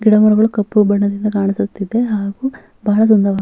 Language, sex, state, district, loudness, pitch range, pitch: Kannada, female, Karnataka, Bellary, -15 LUFS, 200-215 Hz, 210 Hz